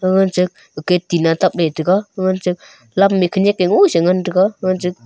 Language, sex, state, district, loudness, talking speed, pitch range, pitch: Wancho, male, Arunachal Pradesh, Longding, -16 LUFS, 165 wpm, 180-190 Hz, 185 Hz